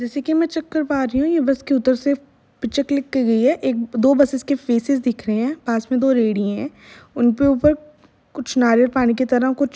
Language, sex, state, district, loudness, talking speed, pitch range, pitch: Hindi, female, Uttar Pradesh, Jalaun, -19 LUFS, 245 wpm, 245-280 Hz, 265 Hz